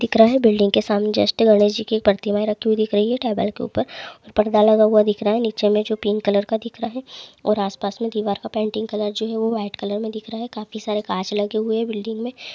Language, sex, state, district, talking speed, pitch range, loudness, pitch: Hindi, male, West Bengal, Jalpaiguri, 270 wpm, 210-225 Hz, -20 LUFS, 215 Hz